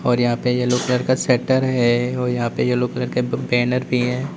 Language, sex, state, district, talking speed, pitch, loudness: Hindi, male, Uttar Pradesh, Lalitpur, 235 wpm, 125 Hz, -19 LUFS